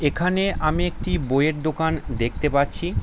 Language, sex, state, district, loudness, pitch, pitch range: Bengali, male, West Bengal, Paschim Medinipur, -23 LUFS, 155 Hz, 140-160 Hz